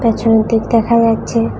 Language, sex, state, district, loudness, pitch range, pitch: Bengali, female, Tripura, West Tripura, -13 LUFS, 220-230 Hz, 225 Hz